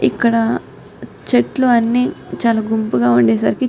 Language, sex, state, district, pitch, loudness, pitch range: Telugu, female, Telangana, Nalgonda, 230 Hz, -16 LUFS, 215-240 Hz